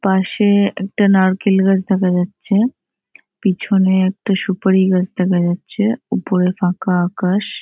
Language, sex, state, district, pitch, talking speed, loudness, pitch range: Bengali, female, West Bengal, North 24 Parganas, 190 Hz, 135 wpm, -16 LUFS, 185-200 Hz